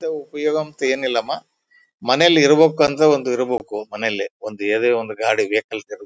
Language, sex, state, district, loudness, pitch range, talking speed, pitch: Kannada, male, Karnataka, Bellary, -18 LUFS, 115-170 Hz, 160 wpm, 145 Hz